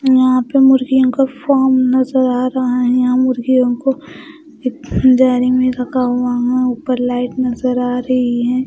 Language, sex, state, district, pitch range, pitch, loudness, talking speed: Hindi, female, Bihar, West Champaran, 250-260 Hz, 255 Hz, -14 LUFS, 165 wpm